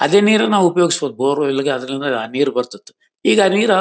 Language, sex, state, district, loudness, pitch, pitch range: Kannada, male, Karnataka, Bellary, -16 LUFS, 145 Hz, 135-190 Hz